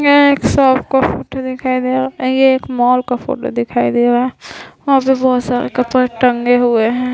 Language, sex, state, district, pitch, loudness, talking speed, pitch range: Hindi, female, Bihar, Vaishali, 255 Hz, -14 LUFS, 220 wpm, 245-265 Hz